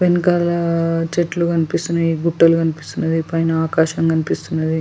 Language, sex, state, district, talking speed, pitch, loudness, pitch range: Telugu, female, Telangana, Nalgonda, 100 wpm, 165 Hz, -18 LUFS, 160-170 Hz